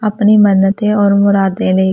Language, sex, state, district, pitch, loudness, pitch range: Hindi, female, Delhi, New Delhi, 200 Hz, -11 LUFS, 195-210 Hz